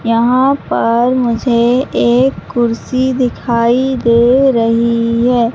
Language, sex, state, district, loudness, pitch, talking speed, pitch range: Hindi, female, Madhya Pradesh, Katni, -12 LUFS, 240 Hz, 95 wpm, 235-255 Hz